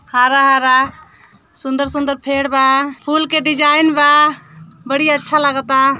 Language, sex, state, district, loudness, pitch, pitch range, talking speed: Hindi, female, Uttar Pradesh, Ghazipur, -13 LUFS, 275 Hz, 265-295 Hz, 120 wpm